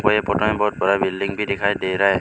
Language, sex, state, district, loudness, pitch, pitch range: Hindi, male, Arunachal Pradesh, Lower Dibang Valley, -20 LUFS, 100 Hz, 100-105 Hz